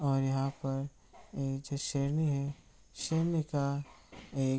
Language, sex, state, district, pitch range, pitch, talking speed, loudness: Hindi, male, Bihar, Araria, 135-145 Hz, 140 Hz, 130 wpm, -34 LUFS